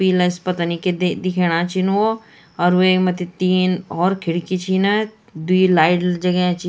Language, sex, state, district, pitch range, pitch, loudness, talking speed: Garhwali, female, Uttarakhand, Tehri Garhwal, 175-185 Hz, 180 Hz, -18 LUFS, 170 wpm